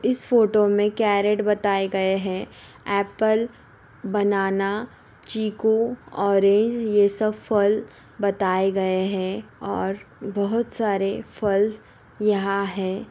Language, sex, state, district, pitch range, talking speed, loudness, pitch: Hindi, female, Uttar Pradesh, Varanasi, 195-215 Hz, 105 wpm, -23 LUFS, 205 Hz